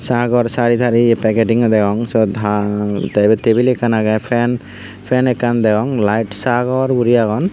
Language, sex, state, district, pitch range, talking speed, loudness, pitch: Chakma, male, Tripura, Unakoti, 110-120 Hz, 165 wpm, -15 LUFS, 115 Hz